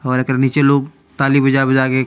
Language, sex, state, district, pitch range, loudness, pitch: Bhojpuri, male, Bihar, Muzaffarpur, 130-140 Hz, -15 LUFS, 135 Hz